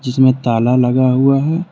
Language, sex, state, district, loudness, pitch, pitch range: Hindi, male, Jharkhand, Deoghar, -13 LUFS, 130 Hz, 125-135 Hz